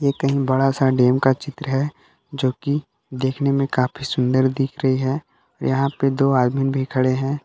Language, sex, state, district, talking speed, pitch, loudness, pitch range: Hindi, male, Jharkhand, Palamu, 195 wpm, 135 Hz, -20 LUFS, 130-140 Hz